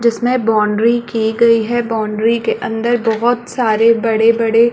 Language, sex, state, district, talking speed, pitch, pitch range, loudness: Hindi, female, Chhattisgarh, Balrampur, 165 wpm, 230 Hz, 225-235 Hz, -14 LUFS